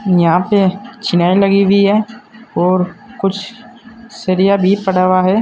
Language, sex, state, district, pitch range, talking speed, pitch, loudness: Hindi, male, Uttar Pradesh, Saharanpur, 185-215 Hz, 135 wpm, 200 Hz, -14 LUFS